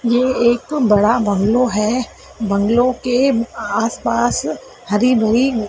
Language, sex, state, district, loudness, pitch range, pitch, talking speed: Hindi, female, Madhya Pradesh, Dhar, -16 LUFS, 215-250 Hz, 235 Hz, 105 wpm